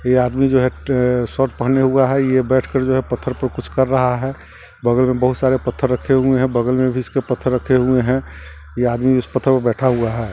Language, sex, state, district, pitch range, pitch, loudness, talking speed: Hindi, male, Bihar, Sitamarhi, 125-130 Hz, 130 Hz, -17 LUFS, 255 wpm